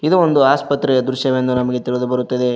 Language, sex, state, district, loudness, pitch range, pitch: Kannada, male, Karnataka, Koppal, -16 LUFS, 125-140 Hz, 130 Hz